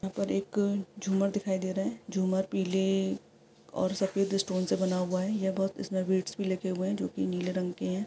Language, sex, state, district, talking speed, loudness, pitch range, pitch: Hindi, female, Andhra Pradesh, Visakhapatnam, 225 wpm, -31 LUFS, 185-195 Hz, 190 Hz